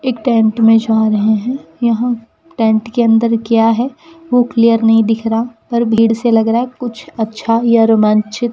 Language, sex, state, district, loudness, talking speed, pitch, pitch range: Hindi, female, Rajasthan, Bikaner, -13 LUFS, 195 wpm, 230 Hz, 225-240 Hz